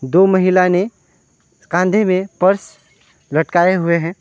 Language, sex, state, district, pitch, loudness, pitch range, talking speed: Hindi, male, West Bengal, Alipurduar, 185 Hz, -15 LUFS, 170-190 Hz, 130 wpm